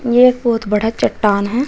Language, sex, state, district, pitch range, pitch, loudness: Hindi, female, Uttar Pradesh, Shamli, 210-245 Hz, 230 Hz, -15 LUFS